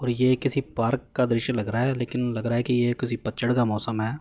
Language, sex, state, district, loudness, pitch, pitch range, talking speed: Hindi, male, Uttar Pradesh, Hamirpur, -25 LUFS, 120 Hz, 115-125 Hz, 55 wpm